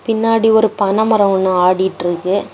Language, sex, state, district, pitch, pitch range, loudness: Tamil, female, Tamil Nadu, Kanyakumari, 200 Hz, 185-220 Hz, -14 LUFS